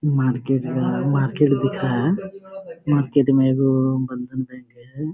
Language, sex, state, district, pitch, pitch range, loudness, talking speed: Hindi, male, Jharkhand, Jamtara, 135 Hz, 130-150 Hz, -20 LUFS, 150 wpm